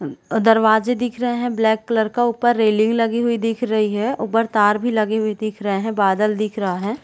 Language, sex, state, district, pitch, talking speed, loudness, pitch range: Hindi, female, Chhattisgarh, Raigarh, 220 Hz, 230 wpm, -19 LUFS, 215-235 Hz